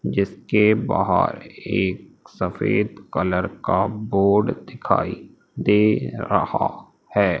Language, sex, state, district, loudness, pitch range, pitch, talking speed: Hindi, male, Madhya Pradesh, Umaria, -21 LUFS, 100-105 Hz, 105 Hz, 90 wpm